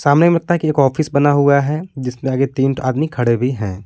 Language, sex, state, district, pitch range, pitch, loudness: Hindi, male, Jharkhand, Palamu, 130-155 Hz, 140 Hz, -16 LUFS